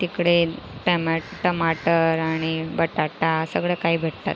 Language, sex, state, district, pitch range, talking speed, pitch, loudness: Marathi, female, Maharashtra, Sindhudurg, 160-175 Hz, 110 wpm, 165 Hz, -22 LUFS